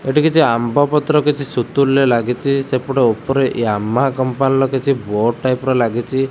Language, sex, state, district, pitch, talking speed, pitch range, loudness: Odia, male, Odisha, Khordha, 135 Hz, 135 wpm, 120-140 Hz, -16 LUFS